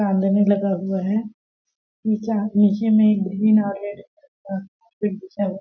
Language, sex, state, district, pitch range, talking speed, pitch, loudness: Hindi, female, Chhattisgarh, Sarguja, 195-215 Hz, 170 wpm, 205 Hz, -21 LUFS